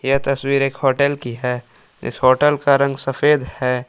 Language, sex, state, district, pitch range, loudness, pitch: Hindi, male, Jharkhand, Palamu, 130-140 Hz, -18 LUFS, 135 Hz